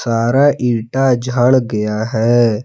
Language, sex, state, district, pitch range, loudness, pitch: Hindi, male, Jharkhand, Palamu, 115-125 Hz, -14 LUFS, 120 Hz